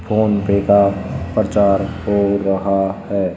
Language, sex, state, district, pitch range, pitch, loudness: Hindi, male, Rajasthan, Jaipur, 95-100 Hz, 100 Hz, -17 LUFS